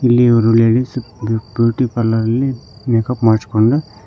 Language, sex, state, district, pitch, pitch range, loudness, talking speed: Kannada, male, Karnataka, Koppal, 115 Hz, 110-125 Hz, -15 LUFS, 105 wpm